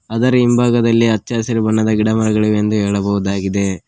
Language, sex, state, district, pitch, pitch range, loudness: Kannada, male, Karnataka, Koppal, 110 Hz, 100-115 Hz, -15 LUFS